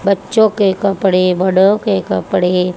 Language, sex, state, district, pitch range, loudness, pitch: Hindi, female, Haryana, Charkhi Dadri, 185-200 Hz, -14 LUFS, 195 Hz